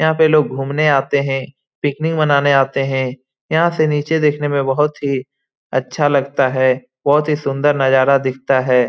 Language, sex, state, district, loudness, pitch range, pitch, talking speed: Hindi, male, Bihar, Lakhisarai, -16 LUFS, 130-150 Hz, 140 Hz, 175 wpm